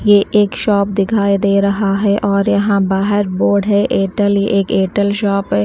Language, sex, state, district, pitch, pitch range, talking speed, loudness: Hindi, female, Delhi, New Delhi, 200 Hz, 200-205 Hz, 190 wpm, -14 LUFS